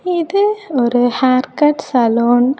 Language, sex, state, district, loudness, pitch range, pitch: Tamil, female, Tamil Nadu, Kanyakumari, -15 LUFS, 245-340 Hz, 260 Hz